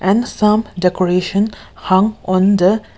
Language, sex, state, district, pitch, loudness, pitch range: English, female, Nagaland, Kohima, 195 Hz, -15 LUFS, 185-210 Hz